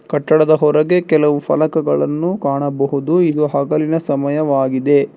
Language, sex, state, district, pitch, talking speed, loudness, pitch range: Kannada, male, Karnataka, Bangalore, 150 Hz, 95 wpm, -15 LUFS, 140-155 Hz